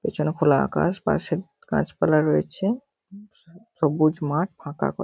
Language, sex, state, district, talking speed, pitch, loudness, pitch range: Bengali, male, West Bengal, North 24 Parganas, 140 wpm, 165 Hz, -23 LUFS, 150-195 Hz